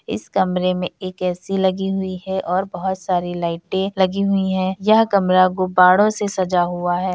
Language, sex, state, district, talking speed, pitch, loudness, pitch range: Hindi, female, Bihar, Kishanganj, 185 wpm, 185 Hz, -19 LUFS, 180-195 Hz